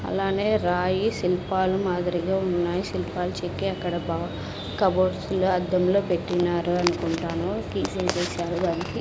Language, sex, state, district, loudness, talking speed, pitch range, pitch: Telugu, female, Andhra Pradesh, Sri Satya Sai, -25 LUFS, 120 wpm, 175-190 Hz, 180 Hz